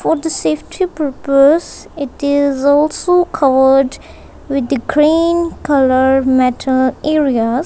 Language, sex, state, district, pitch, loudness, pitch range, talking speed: English, female, Punjab, Kapurthala, 280 Hz, -14 LUFS, 265-310 Hz, 110 wpm